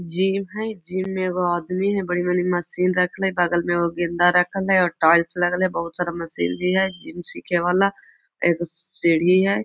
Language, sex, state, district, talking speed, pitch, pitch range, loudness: Magahi, female, Bihar, Gaya, 200 wpm, 180 Hz, 175-185 Hz, -21 LUFS